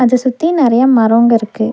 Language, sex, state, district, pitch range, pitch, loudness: Tamil, female, Tamil Nadu, Nilgiris, 230-255 Hz, 240 Hz, -11 LUFS